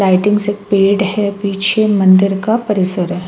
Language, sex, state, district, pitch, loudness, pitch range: Hindi, female, Chhattisgarh, Raipur, 200 Hz, -13 LUFS, 190-205 Hz